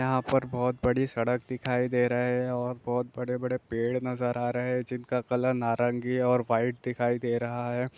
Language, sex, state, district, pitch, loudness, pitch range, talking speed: Hindi, male, Bihar, East Champaran, 125 Hz, -29 LUFS, 120-125 Hz, 195 wpm